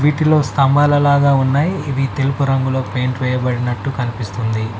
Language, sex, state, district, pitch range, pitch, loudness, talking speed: Telugu, male, Telangana, Mahabubabad, 125-140 Hz, 135 Hz, -16 LUFS, 125 wpm